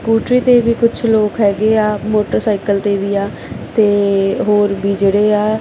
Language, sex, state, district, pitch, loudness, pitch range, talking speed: Punjabi, female, Punjab, Kapurthala, 210 Hz, -14 LUFS, 200-220 Hz, 170 wpm